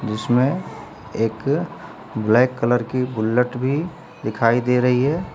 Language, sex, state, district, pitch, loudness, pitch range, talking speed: Hindi, male, Uttar Pradesh, Lucknow, 125 Hz, -20 LUFS, 110-140 Hz, 125 wpm